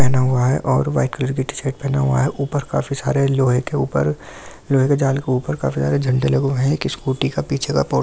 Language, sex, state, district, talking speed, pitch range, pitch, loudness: Hindi, male, Delhi, New Delhi, 260 wpm, 125-140 Hz, 130 Hz, -19 LUFS